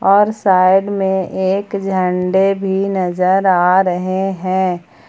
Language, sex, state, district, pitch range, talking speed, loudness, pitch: Hindi, female, Jharkhand, Palamu, 185-195 Hz, 120 wpm, -15 LUFS, 190 Hz